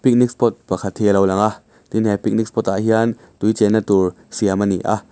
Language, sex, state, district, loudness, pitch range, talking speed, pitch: Mizo, male, Mizoram, Aizawl, -18 LUFS, 95-110 Hz, 245 wpm, 105 Hz